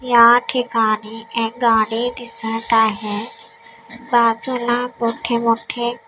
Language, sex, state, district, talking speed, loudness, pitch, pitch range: Marathi, female, Maharashtra, Gondia, 90 wpm, -18 LUFS, 230 Hz, 225-240 Hz